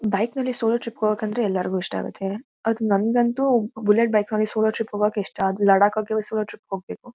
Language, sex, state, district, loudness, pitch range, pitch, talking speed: Kannada, female, Karnataka, Mysore, -23 LUFS, 205-225 Hz, 215 Hz, 185 wpm